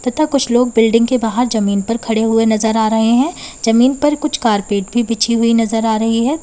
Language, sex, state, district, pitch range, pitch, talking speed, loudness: Hindi, female, Uttar Pradesh, Lalitpur, 225-250 Hz, 230 Hz, 235 wpm, -14 LUFS